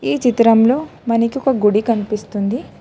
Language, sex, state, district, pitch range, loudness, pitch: Telugu, female, Telangana, Hyderabad, 210-245 Hz, -16 LUFS, 230 Hz